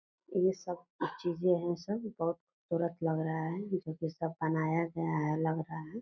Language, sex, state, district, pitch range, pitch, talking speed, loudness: Hindi, female, Bihar, Purnia, 160-180 Hz, 170 Hz, 210 wpm, -34 LUFS